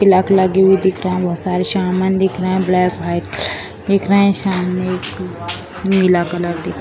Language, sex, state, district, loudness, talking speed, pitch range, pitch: Hindi, female, Bihar, Purnia, -16 LUFS, 205 wpm, 180-190 Hz, 185 Hz